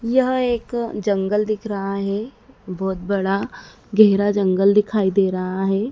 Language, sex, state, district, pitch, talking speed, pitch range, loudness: Hindi, female, Madhya Pradesh, Dhar, 200 Hz, 140 wpm, 195-215 Hz, -20 LUFS